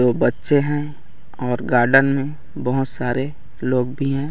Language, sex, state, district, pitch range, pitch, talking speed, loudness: Hindi, male, Chhattisgarh, Raigarh, 125-140 Hz, 135 Hz, 155 wpm, -20 LUFS